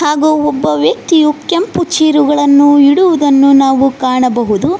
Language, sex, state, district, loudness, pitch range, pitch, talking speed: Kannada, female, Karnataka, Koppal, -10 LUFS, 270-310 Hz, 290 Hz, 115 wpm